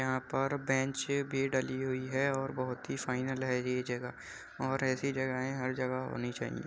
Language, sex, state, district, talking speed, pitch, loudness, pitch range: Hindi, male, Uttar Pradesh, Jyotiba Phule Nagar, 190 wpm, 130 Hz, -34 LUFS, 130-135 Hz